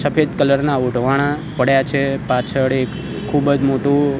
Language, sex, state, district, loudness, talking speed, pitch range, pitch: Gujarati, male, Gujarat, Gandhinagar, -17 LUFS, 170 wpm, 135-145 Hz, 140 Hz